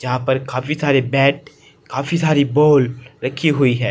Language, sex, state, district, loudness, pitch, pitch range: Hindi, male, Uttar Pradesh, Saharanpur, -17 LUFS, 135 Hz, 130-145 Hz